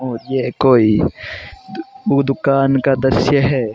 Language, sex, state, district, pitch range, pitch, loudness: Hindi, male, Rajasthan, Bikaner, 125-135 Hz, 135 Hz, -15 LUFS